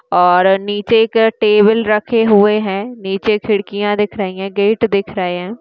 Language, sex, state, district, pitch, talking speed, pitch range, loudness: Hindi, female, Uttar Pradesh, Hamirpur, 210 Hz, 170 wpm, 195-220 Hz, -14 LUFS